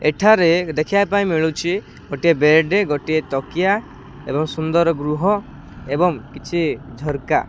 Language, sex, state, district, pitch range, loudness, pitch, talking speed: Odia, male, Odisha, Khordha, 150-180 Hz, -18 LUFS, 160 Hz, 110 wpm